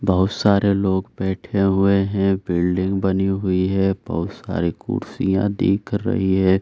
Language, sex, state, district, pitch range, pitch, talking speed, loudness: Hindi, male, Bihar, Saran, 95-100 Hz, 95 Hz, 145 wpm, -20 LUFS